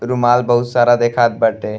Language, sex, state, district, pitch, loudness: Bhojpuri, male, Uttar Pradesh, Gorakhpur, 120 Hz, -14 LUFS